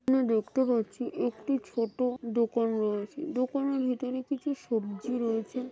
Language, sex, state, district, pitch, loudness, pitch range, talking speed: Bengali, female, West Bengal, Jalpaiguri, 245 Hz, -30 LUFS, 225-260 Hz, 125 wpm